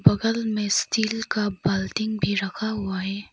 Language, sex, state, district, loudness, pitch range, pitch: Hindi, female, Arunachal Pradesh, Lower Dibang Valley, -25 LUFS, 195-220 Hz, 205 Hz